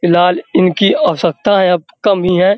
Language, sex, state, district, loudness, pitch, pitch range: Hindi, male, Uttar Pradesh, Hamirpur, -12 LUFS, 180 Hz, 175-195 Hz